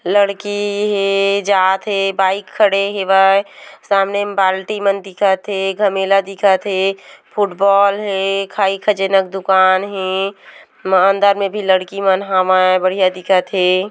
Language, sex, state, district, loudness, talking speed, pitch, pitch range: Hindi, female, Chhattisgarh, Korba, -15 LUFS, 145 wpm, 195 Hz, 190-200 Hz